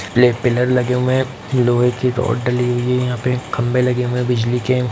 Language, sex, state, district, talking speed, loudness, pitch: Hindi, male, Bihar, Lakhisarai, 230 wpm, -17 LUFS, 125 Hz